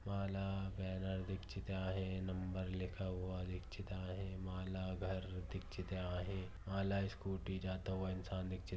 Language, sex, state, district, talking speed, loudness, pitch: Hindi, female, Maharashtra, Pune, 130 wpm, -44 LUFS, 95 Hz